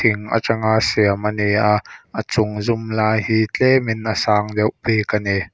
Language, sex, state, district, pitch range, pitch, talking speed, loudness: Mizo, male, Mizoram, Aizawl, 105-110 Hz, 110 Hz, 205 wpm, -18 LUFS